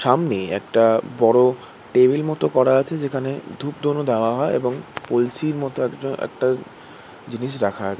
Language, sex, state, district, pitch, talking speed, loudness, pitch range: Bengali, male, West Bengal, Kolkata, 130 Hz, 140 wpm, -21 LUFS, 120-140 Hz